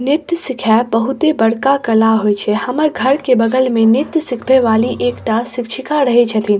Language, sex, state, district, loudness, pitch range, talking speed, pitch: Maithili, female, Bihar, Saharsa, -14 LUFS, 225-270 Hz, 180 wpm, 245 Hz